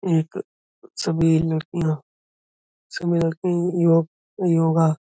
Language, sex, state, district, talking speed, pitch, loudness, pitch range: Hindi, male, Uttar Pradesh, Budaun, 85 wpm, 165 Hz, -22 LUFS, 160-175 Hz